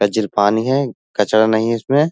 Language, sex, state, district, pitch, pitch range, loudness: Hindi, male, Bihar, Jahanabad, 110 Hz, 110-130 Hz, -17 LUFS